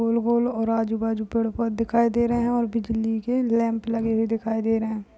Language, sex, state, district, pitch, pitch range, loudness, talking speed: Hindi, female, Uttar Pradesh, Jyotiba Phule Nagar, 225 Hz, 225-235 Hz, -24 LUFS, 230 wpm